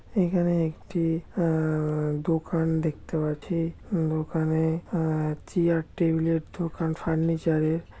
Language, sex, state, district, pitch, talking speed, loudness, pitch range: Bengali, male, West Bengal, Dakshin Dinajpur, 165 Hz, 105 wpm, -27 LUFS, 160-170 Hz